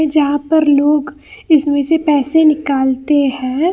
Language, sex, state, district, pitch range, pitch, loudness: Hindi, female, Karnataka, Bangalore, 280-310 Hz, 295 Hz, -13 LUFS